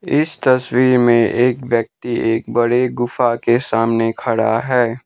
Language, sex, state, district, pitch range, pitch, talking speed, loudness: Hindi, male, Sikkim, Gangtok, 115-125 Hz, 120 Hz, 140 wpm, -16 LUFS